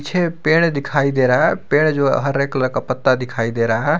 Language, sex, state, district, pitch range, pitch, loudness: Hindi, male, Jharkhand, Garhwa, 130-155 Hz, 140 Hz, -17 LUFS